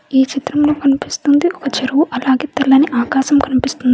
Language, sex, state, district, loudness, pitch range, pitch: Telugu, female, Telangana, Hyderabad, -15 LUFS, 265-290 Hz, 275 Hz